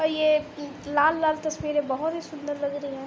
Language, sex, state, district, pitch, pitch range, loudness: Hindi, female, Uttar Pradesh, Budaun, 300 Hz, 285-310 Hz, -26 LUFS